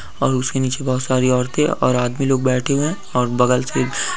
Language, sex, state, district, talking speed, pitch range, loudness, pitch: Hindi, male, West Bengal, Dakshin Dinajpur, 215 wpm, 125-135 Hz, -18 LUFS, 130 Hz